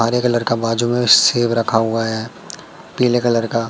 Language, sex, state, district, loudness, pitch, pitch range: Hindi, male, Madhya Pradesh, Katni, -16 LUFS, 115 Hz, 115-120 Hz